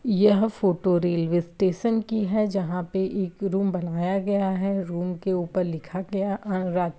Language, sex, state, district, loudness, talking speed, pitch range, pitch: Hindi, female, Uttar Pradesh, Etah, -25 LUFS, 180 wpm, 180-200 Hz, 190 Hz